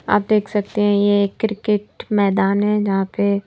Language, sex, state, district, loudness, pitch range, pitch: Hindi, female, Madhya Pradesh, Bhopal, -18 LUFS, 200-210 Hz, 205 Hz